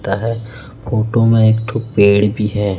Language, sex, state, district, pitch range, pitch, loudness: Hindi, male, Chhattisgarh, Raipur, 105-115 Hz, 110 Hz, -15 LUFS